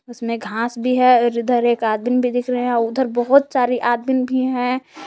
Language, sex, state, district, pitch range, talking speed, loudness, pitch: Hindi, female, Jharkhand, Palamu, 235-255 Hz, 215 wpm, -18 LUFS, 245 Hz